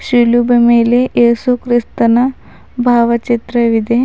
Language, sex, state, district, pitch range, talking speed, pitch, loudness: Kannada, female, Karnataka, Bidar, 235-245 Hz, 75 wpm, 240 Hz, -12 LUFS